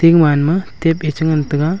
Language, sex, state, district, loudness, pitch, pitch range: Wancho, male, Arunachal Pradesh, Longding, -15 LUFS, 160 Hz, 150-165 Hz